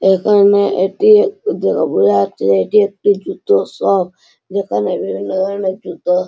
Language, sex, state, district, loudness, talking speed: Bengali, male, West Bengal, Malda, -14 LUFS, 145 wpm